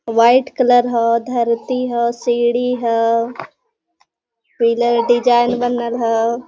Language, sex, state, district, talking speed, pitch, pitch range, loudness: Hindi, female, Jharkhand, Sahebganj, 100 wpm, 240 Hz, 230-245 Hz, -16 LUFS